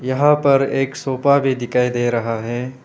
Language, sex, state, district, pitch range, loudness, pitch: Hindi, male, Arunachal Pradesh, Papum Pare, 120-135 Hz, -18 LUFS, 130 Hz